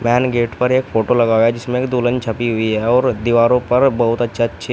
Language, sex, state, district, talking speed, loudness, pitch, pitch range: Hindi, male, Uttar Pradesh, Shamli, 265 wpm, -16 LUFS, 120 Hz, 115-125 Hz